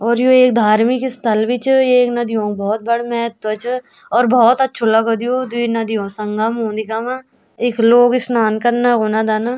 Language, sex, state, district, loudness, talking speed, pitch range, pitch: Garhwali, female, Uttarakhand, Tehri Garhwal, -15 LUFS, 195 wpm, 220-245 Hz, 235 Hz